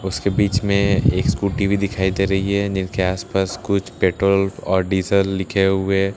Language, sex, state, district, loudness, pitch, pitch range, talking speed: Hindi, male, Bihar, Katihar, -19 LUFS, 95 Hz, 95-100 Hz, 185 wpm